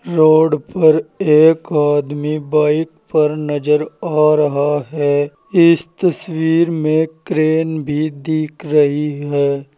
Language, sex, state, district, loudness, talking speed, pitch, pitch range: Hindi, male, Uttar Pradesh, Saharanpur, -15 LUFS, 110 wpm, 155 Hz, 145-160 Hz